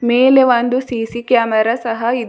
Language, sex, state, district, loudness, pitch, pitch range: Kannada, female, Karnataka, Bidar, -14 LUFS, 240 Hz, 230-250 Hz